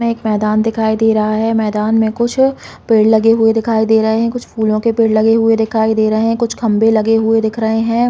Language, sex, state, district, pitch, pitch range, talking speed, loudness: Hindi, female, Chhattisgarh, Balrampur, 225 Hz, 220-225 Hz, 250 wpm, -13 LUFS